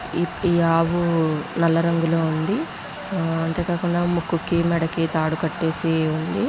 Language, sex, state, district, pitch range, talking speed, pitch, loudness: Telugu, female, Andhra Pradesh, Guntur, 165-175 Hz, 120 wpm, 165 Hz, -22 LUFS